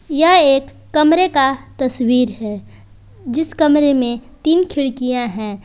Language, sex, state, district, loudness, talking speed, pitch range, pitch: Hindi, female, Jharkhand, Palamu, -15 LUFS, 125 wpm, 235-305 Hz, 265 Hz